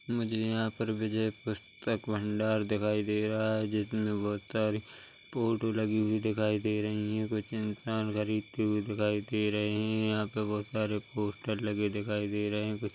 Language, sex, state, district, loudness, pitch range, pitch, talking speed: Hindi, male, Chhattisgarh, Korba, -32 LUFS, 105-110 Hz, 105 Hz, 185 wpm